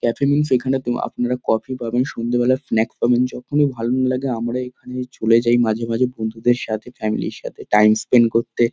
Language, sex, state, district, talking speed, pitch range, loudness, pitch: Bengali, male, West Bengal, Kolkata, 190 wpm, 115-125 Hz, -19 LUFS, 120 Hz